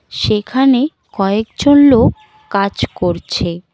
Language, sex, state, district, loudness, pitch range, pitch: Bengali, female, West Bengal, Cooch Behar, -14 LUFS, 195-275 Hz, 220 Hz